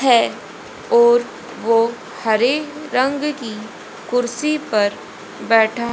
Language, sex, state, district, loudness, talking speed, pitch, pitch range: Hindi, female, Haryana, Rohtak, -18 LUFS, 90 wpm, 245 Hz, 225-300 Hz